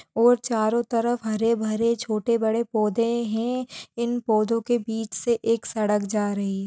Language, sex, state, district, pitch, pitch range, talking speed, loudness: Hindi, female, Maharashtra, Chandrapur, 230 Hz, 215-235 Hz, 160 wpm, -24 LUFS